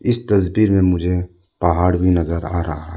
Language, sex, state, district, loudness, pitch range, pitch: Hindi, male, Arunachal Pradesh, Lower Dibang Valley, -18 LUFS, 85-95 Hz, 90 Hz